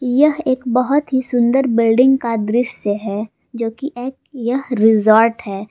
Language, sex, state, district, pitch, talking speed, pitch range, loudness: Hindi, female, Jharkhand, Palamu, 240 Hz, 160 wpm, 225-260 Hz, -16 LUFS